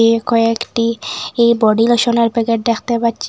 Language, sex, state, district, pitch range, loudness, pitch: Bengali, female, Assam, Hailakandi, 230-235 Hz, -15 LUFS, 230 Hz